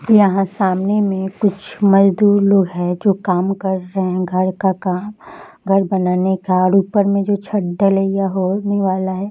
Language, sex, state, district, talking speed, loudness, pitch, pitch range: Hindi, female, Bihar, Jahanabad, 175 wpm, -16 LUFS, 195 Hz, 185-200 Hz